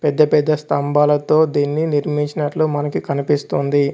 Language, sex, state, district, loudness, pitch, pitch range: Telugu, male, Telangana, Komaram Bheem, -17 LUFS, 150 Hz, 145-150 Hz